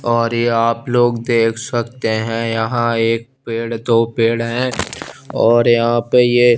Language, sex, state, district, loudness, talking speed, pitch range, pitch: Hindi, male, Chandigarh, Chandigarh, -16 LUFS, 155 wpm, 115-120 Hz, 115 Hz